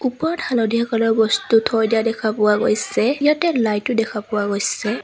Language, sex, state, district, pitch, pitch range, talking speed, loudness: Assamese, female, Assam, Sonitpur, 225 Hz, 215-240 Hz, 180 wpm, -19 LUFS